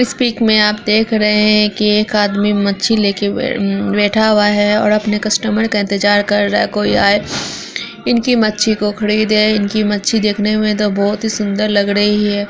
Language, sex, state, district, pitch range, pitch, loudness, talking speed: Hindi, female, Bihar, Araria, 205-215 Hz, 210 Hz, -14 LUFS, 190 wpm